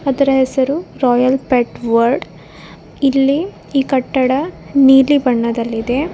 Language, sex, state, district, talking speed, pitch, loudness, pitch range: Kannada, female, Karnataka, Koppal, 100 wpm, 265 Hz, -15 LUFS, 250-275 Hz